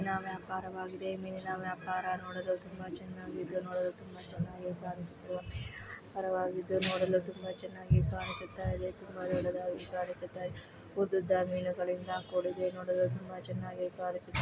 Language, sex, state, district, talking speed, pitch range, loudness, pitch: Kannada, female, Karnataka, Bellary, 100 wpm, 180-185 Hz, -36 LUFS, 180 Hz